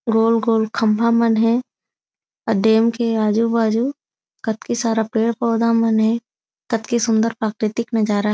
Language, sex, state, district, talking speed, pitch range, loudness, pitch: Chhattisgarhi, female, Chhattisgarh, Raigarh, 120 wpm, 220-230 Hz, -19 LUFS, 225 Hz